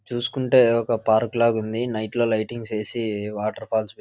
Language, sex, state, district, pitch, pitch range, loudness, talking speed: Telugu, male, Andhra Pradesh, Visakhapatnam, 115 Hz, 110-120 Hz, -23 LUFS, 180 wpm